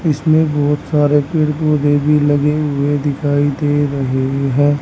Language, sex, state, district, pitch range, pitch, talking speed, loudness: Hindi, male, Haryana, Rohtak, 145-150 Hz, 145 Hz, 150 wpm, -15 LUFS